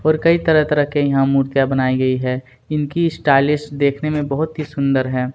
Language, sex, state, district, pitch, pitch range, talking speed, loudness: Hindi, male, Chhattisgarh, Kabirdham, 140 Hz, 135-155 Hz, 200 wpm, -17 LUFS